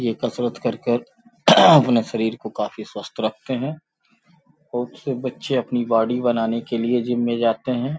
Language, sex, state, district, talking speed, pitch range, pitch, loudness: Hindi, male, Uttar Pradesh, Gorakhpur, 165 wpm, 115-130 Hz, 120 Hz, -21 LUFS